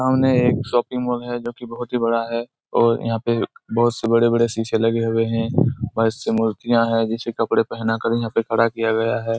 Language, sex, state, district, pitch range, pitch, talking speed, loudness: Hindi, male, Chhattisgarh, Raigarh, 115-120 Hz, 115 Hz, 215 wpm, -20 LUFS